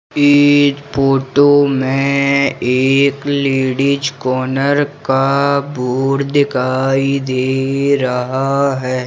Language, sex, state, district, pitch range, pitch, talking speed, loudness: Hindi, male, Madhya Pradesh, Umaria, 130-140 Hz, 135 Hz, 80 wpm, -14 LUFS